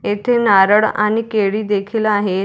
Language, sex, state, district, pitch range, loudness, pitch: Marathi, female, Maharashtra, Dhule, 205-220 Hz, -15 LUFS, 210 Hz